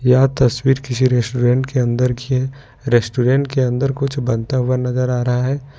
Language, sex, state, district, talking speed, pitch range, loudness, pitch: Hindi, male, Jharkhand, Ranchi, 175 wpm, 125-135 Hz, -17 LUFS, 125 Hz